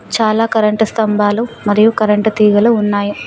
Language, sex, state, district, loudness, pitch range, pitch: Telugu, female, Telangana, Mahabubabad, -13 LUFS, 210-220 Hz, 215 Hz